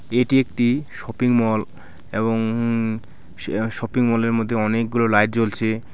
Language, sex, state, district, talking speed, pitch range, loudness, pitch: Bengali, male, West Bengal, Alipurduar, 120 wpm, 110-120 Hz, -21 LUFS, 115 Hz